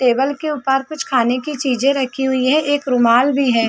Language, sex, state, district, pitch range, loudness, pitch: Hindi, female, Chhattisgarh, Sarguja, 250-285 Hz, -17 LUFS, 270 Hz